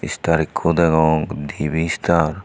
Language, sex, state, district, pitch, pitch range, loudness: Chakma, male, Tripura, Unakoti, 80 Hz, 75-85 Hz, -19 LUFS